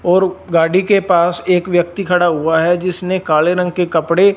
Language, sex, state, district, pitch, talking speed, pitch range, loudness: Hindi, male, Punjab, Fazilka, 180 Hz, 190 wpm, 170-185 Hz, -14 LUFS